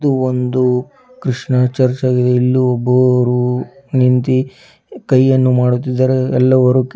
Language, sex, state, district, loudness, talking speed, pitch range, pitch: Kannada, female, Karnataka, Bidar, -14 LUFS, 85 wpm, 125-130 Hz, 130 Hz